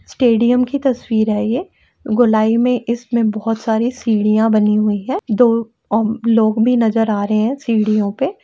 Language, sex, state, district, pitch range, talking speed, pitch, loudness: Hindi, female, Uttar Pradesh, Etah, 215-245 Hz, 165 wpm, 225 Hz, -16 LUFS